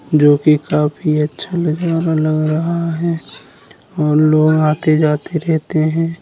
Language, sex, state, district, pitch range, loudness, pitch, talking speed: Bundeli, male, Uttar Pradesh, Jalaun, 150-165 Hz, -15 LUFS, 155 Hz, 125 wpm